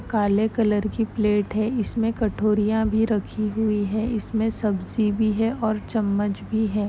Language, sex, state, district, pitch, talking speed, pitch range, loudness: Hindi, female, Maharashtra, Chandrapur, 215 Hz, 165 wpm, 210-220 Hz, -23 LUFS